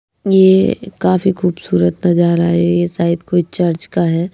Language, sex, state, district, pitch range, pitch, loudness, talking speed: Hindi, female, Madhya Pradesh, Bhopal, 170-185 Hz, 175 Hz, -14 LUFS, 150 wpm